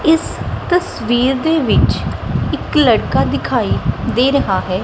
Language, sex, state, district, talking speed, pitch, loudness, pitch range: Punjabi, female, Punjab, Kapurthala, 125 wpm, 290 Hz, -16 LUFS, 255-325 Hz